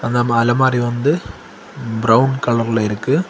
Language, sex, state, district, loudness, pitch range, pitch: Tamil, male, Tamil Nadu, Kanyakumari, -17 LUFS, 115-130 Hz, 120 Hz